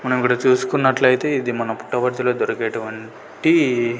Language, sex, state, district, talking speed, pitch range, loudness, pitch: Telugu, male, Andhra Pradesh, Sri Satya Sai, 105 wpm, 115-130 Hz, -19 LUFS, 125 Hz